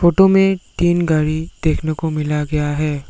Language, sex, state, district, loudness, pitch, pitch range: Hindi, male, Assam, Sonitpur, -17 LUFS, 155 Hz, 150-175 Hz